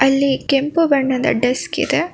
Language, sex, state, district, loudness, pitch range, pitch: Kannada, female, Karnataka, Bangalore, -17 LUFS, 265-295 Hz, 275 Hz